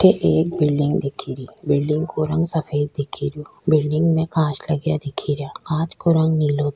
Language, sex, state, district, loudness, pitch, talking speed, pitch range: Rajasthani, female, Rajasthan, Churu, -21 LUFS, 155 Hz, 170 wpm, 145-160 Hz